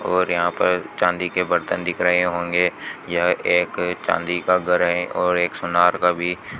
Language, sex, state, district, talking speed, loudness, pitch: Hindi, male, Rajasthan, Bikaner, 180 wpm, -20 LUFS, 90 Hz